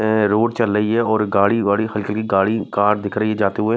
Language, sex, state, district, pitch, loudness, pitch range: Hindi, male, Maharashtra, Mumbai Suburban, 105 Hz, -18 LUFS, 105-110 Hz